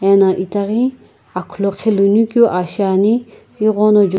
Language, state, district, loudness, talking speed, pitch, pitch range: Sumi, Nagaland, Kohima, -15 LUFS, 115 wpm, 200 Hz, 190-215 Hz